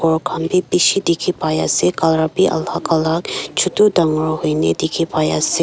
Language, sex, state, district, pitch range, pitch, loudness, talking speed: Nagamese, female, Nagaland, Kohima, 155-180 Hz, 160 Hz, -17 LUFS, 170 wpm